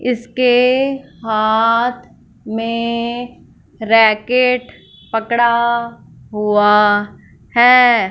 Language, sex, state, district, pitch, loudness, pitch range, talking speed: Hindi, female, Punjab, Fazilka, 235 Hz, -14 LUFS, 220-245 Hz, 50 wpm